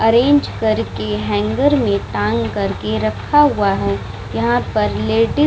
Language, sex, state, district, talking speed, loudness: Hindi, female, Bihar, Vaishali, 155 wpm, -17 LUFS